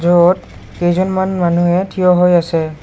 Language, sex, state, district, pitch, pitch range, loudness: Assamese, male, Assam, Kamrup Metropolitan, 175 Hz, 175-185 Hz, -14 LUFS